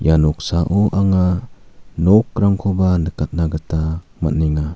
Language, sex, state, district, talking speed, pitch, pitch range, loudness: Garo, male, Meghalaya, South Garo Hills, 90 wpm, 85 Hz, 80-100 Hz, -17 LUFS